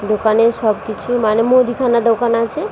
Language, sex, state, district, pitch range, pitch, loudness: Bengali, female, West Bengal, Dakshin Dinajpur, 220-245 Hz, 230 Hz, -15 LUFS